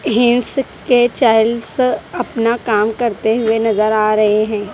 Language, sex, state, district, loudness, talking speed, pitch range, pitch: Hindi, female, Punjab, Kapurthala, -15 LUFS, 140 wpm, 215-240 Hz, 225 Hz